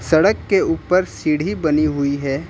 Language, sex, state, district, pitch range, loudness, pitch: Hindi, male, Uttar Pradesh, Lucknow, 145-200 Hz, -18 LUFS, 155 Hz